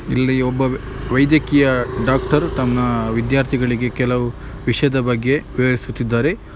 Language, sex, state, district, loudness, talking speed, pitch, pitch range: Kannada, male, Karnataka, Mysore, -18 LUFS, 90 wpm, 130 Hz, 125-135 Hz